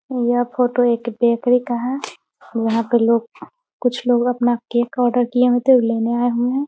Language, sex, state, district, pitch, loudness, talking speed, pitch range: Hindi, female, Bihar, Muzaffarpur, 245 Hz, -18 LUFS, 190 wpm, 235-245 Hz